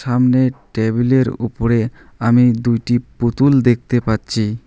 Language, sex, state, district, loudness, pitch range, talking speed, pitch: Bengali, male, West Bengal, Alipurduar, -16 LUFS, 115-125 Hz, 105 wpm, 120 Hz